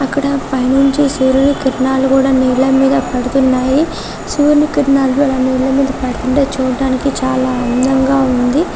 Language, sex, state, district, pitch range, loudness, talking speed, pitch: Telugu, female, Telangana, Karimnagar, 260-275 Hz, -13 LUFS, 125 wpm, 265 Hz